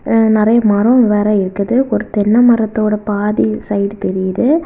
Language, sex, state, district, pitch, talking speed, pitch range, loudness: Tamil, female, Tamil Nadu, Kanyakumari, 215 Hz, 130 wpm, 205-230 Hz, -13 LUFS